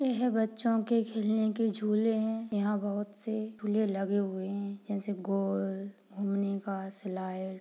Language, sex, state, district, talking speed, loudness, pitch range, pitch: Hindi, female, Chhattisgarh, Bastar, 160 wpm, -32 LUFS, 195-220 Hz, 205 Hz